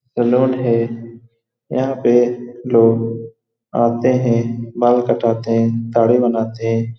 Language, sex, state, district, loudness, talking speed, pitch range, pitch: Hindi, male, Bihar, Saran, -16 LUFS, 105 wpm, 115-120 Hz, 115 Hz